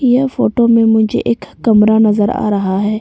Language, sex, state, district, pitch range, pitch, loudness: Hindi, female, Arunachal Pradesh, Papum Pare, 210-235 Hz, 220 Hz, -13 LUFS